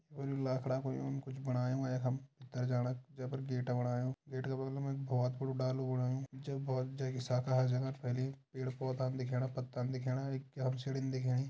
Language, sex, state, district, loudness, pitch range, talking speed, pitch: Hindi, male, Uttarakhand, Tehri Garhwal, -38 LUFS, 125-135 Hz, 165 wpm, 130 Hz